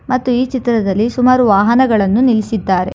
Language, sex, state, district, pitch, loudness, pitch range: Kannada, female, Karnataka, Bangalore, 235 Hz, -13 LUFS, 205-255 Hz